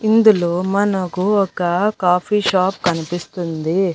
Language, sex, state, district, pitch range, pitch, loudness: Telugu, female, Andhra Pradesh, Annamaya, 175-200 Hz, 185 Hz, -17 LUFS